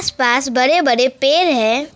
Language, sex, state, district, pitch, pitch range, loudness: Hindi, female, West Bengal, Alipurduar, 255 Hz, 245-280 Hz, -14 LUFS